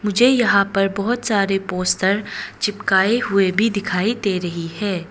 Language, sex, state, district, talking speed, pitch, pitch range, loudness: Hindi, female, Arunachal Pradesh, Papum Pare, 150 wpm, 200 Hz, 190-215 Hz, -19 LUFS